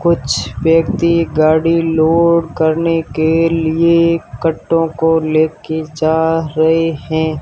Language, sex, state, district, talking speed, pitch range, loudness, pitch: Hindi, male, Rajasthan, Barmer, 105 wpm, 160-165 Hz, -14 LUFS, 160 Hz